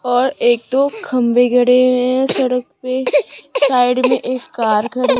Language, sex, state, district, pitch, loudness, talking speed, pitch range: Hindi, female, Rajasthan, Jaipur, 250 Hz, -15 LUFS, 160 wpm, 245-255 Hz